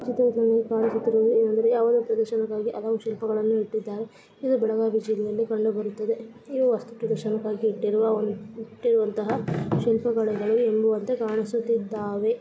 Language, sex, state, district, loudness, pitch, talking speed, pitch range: Kannada, female, Karnataka, Belgaum, -25 LUFS, 225 Hz, 80 wpm, 215-230 Hz